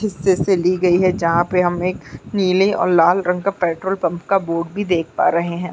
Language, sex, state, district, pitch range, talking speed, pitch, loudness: Hindi, female, Uttarakhand, Uttarkashi, 170-190 Hz, 240 wpm, 180 Hz, -18 LUFS